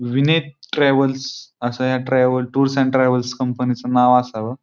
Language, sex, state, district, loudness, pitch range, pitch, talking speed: Marathi, male, Maharashtra, Pune, -18 LUFS, 125-135 Hz, 130 Hz, 145 wpm